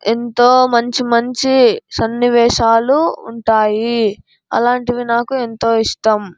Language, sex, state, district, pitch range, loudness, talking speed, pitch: Telugu, male, Andhra Pradesh, Anantapur, 230-250 Hz, -14 LUFS, 85 wpm, 235 Hz